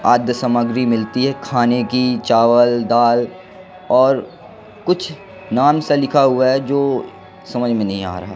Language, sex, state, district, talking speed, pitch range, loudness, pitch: Hindi, male, Madhya Pradesh, Katni, 150 wpm, 120-140 Hz, -16 LUFS, 125 Hz